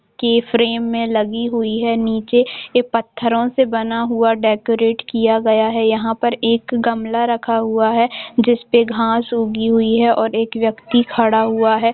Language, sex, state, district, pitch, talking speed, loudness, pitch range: Hindi, female, Jharkhand, Jamtara, 230 Hz, 170 wpm, -17 LUFS, 225-235 Hz